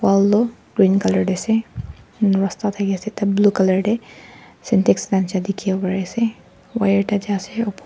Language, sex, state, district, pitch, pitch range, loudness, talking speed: Nagamese, female, Nagaland, Dimapur, 200 Hz, 190-215 Hz, -19 LUFS, 120 wpm